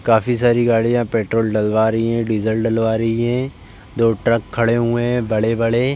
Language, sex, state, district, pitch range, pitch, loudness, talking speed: Hindi, male, Uttar Pradesh, Jalaun, 110-120 Hz, 115 Hz, -18 LUFS, 170 wpm